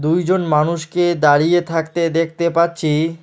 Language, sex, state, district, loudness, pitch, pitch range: Bengali, male, West Bengal, Alipurduar, -17 LUFS, 165 Hz, 155-170 Hz